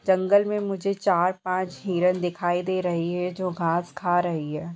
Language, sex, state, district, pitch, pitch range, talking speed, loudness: Hindi, female, Bihar, Bhagalpur, 180 Hz, 175-185 Hz, 190 wpm, -25 LUFS